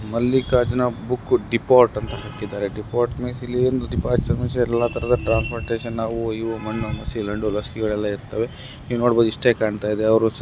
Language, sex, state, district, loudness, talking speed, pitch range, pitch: Kannada, male, Karnataka, Gulbarga, -22 LUFS, 155 wpm, 110-125 Hz, 115 Hz